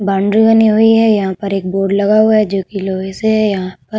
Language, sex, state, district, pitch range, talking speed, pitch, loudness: Hindi, female, Uttar Pradesh, Budaun, 195-220 Hz, 285 wpm, 200 Hz, -13 LUFS